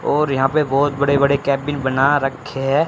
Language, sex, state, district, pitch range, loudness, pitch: Hindi, male, Haryana, Rohtak, 135-145 Hz, -18 LUFS, 140 Hz